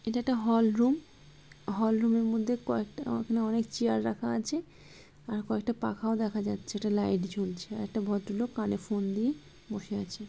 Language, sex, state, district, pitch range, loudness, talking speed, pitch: Bengali, female, West Bengal, Malda, 200-230 Hz, -31 LUFS, 175 wpm, 215 Hz